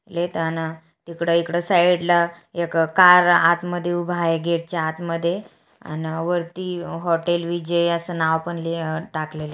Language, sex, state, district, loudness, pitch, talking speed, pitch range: Marathi, female, Maharashtra, Aurangabad, -21 LUFS, 170 Hz, 155 wpm, 165-175 Hz